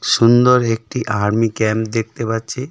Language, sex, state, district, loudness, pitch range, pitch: Bengali, male, West Bengal, Darjeeling, -16 LUFS, 110-120 Hz, 115 Hz